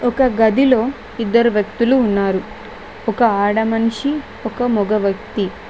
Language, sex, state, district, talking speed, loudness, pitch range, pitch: Telugu, female, Telangana, Mahabubabad, 115 wpm, -17 LUFS, 215-240 Hz, 225 Hz